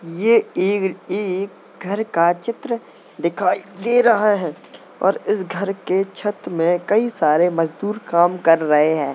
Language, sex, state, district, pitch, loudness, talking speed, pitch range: Hindi, male, Uttar Pradesh, Jalaun, 190 Hz, -19 LUFS, 165 wpm, 170-210 Hz